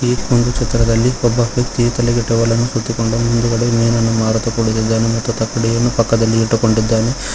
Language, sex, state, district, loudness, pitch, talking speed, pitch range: Kannada, male, Karnataka, Koppal, -15 LUFS, 115 Hz, 130 wpm, 115-120 Hz